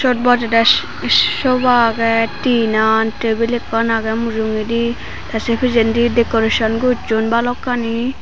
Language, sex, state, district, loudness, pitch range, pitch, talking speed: Chakma, female, Tripura, Dhalai, -16 LUFS, 225-240 Hz, 230 Hz, 115 wpm